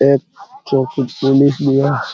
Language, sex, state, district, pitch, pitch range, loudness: Hindi, male, Bihar, Araria, 135 Hz, 135-140 Hz, -15 LUFS